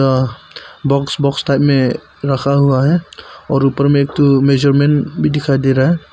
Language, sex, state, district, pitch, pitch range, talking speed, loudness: Hindi, male, Arunachal Pradesh, Papum Pare, 140 Hz, 135-145 Hz, 185 wpm, -14 LUFS